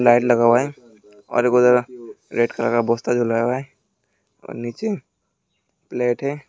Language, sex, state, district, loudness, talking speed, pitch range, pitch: Hindi, male, West Bengal, Alipurduar, -20 LUFS, 155 wpm, 115-125 Hz, 120 Hz